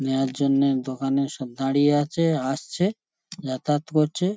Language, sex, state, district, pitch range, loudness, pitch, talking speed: Bengali, male, West Bengal, Paschim Medinipur, 135-155 Hz, -24 LUFS, 140 Hz, 125 wpm